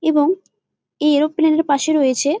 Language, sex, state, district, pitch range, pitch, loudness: Bengali, female, West Bengal, Jalpaiguri, 290-320 Hz, 300 Hz, -17 LUFS